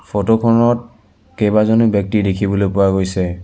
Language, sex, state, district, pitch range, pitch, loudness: Assamese, male, Assam, Sonitpur, 95-110 Hz, 100 Hz, -15 LUFS